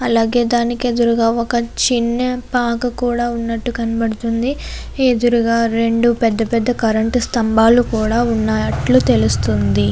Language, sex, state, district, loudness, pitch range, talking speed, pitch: Telugu, female, Andhra Pradesh, Chittoor, -16 LUFS, 225-240 Hz, 110 wpm, 235 Hz